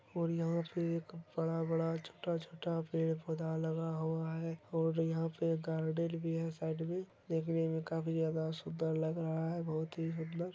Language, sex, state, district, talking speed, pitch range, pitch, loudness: Hindi, male, Bihar, Araria, 160 wpm, 160-165 Hz, 165 Hz, -38 LUFS